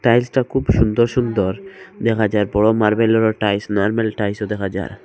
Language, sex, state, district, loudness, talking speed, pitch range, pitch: Bengali, male, Assam, Hailakandi, -18 LUFS, 180 wpm, 105-115 Hz, 110 Hz